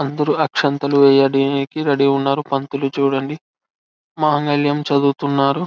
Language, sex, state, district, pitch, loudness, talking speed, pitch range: Telugu, male, Telangana, Karimnagar, 140 Hz, -17 LUFS, 85 wpm, 140-145 Hz